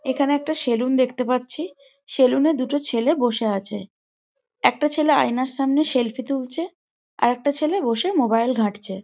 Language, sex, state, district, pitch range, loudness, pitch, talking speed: Bengali, female, West Bengal, Jhargram, 245-300 Hz, -21 LUFS, 265 Hz, 155 wpm